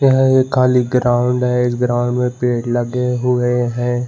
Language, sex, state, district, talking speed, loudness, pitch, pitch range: Hindi, male, Chhattisgarh, Bilaspur, 175 wpm, -16 LUFS, 125 Hz, 120-125 Hz